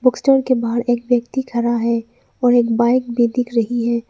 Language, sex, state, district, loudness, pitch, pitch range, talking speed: Hindi, female, Arunachal Pradesh, Lower Dibang Valley, -18 LUFS, 240 Hz, 235-250 Hz, 205 wpm